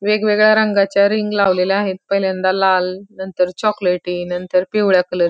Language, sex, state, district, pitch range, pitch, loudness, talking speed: Marathi, female, Maharashtra, Pune, 180-205 Hz, 190 Hz, -16 LUFS, 145 wpm